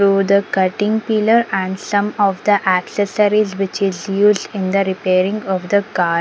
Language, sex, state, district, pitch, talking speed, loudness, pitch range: English, female, Punjab, Pathankot, 200 Hz, 175 wpm, -16 LUFS, 190-210 Hz